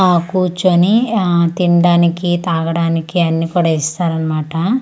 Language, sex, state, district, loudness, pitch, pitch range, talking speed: Telugu, female, Andhra Pradesh, Manyam, -15 LUFS, 175 Hz, 165-180 Hz, 110 wpm